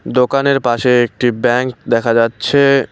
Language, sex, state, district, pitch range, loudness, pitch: Bengali, male, West Bengal, Cooch Behar, 120-135 Hz, -14 LUFS, 125 Hz